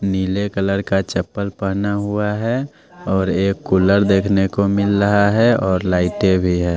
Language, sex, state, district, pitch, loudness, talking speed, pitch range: Hindi, male, Punjab, Pathankot, 100 Hz, -17 LUFS, 170 wpm, 95-100 Hz